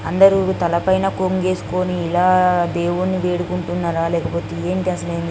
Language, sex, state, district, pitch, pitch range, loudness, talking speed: Telugu, female, Andhra Pradesh, Guntur, 180 Hz, 170-185 Hz, -18 LUFS, 115 wpm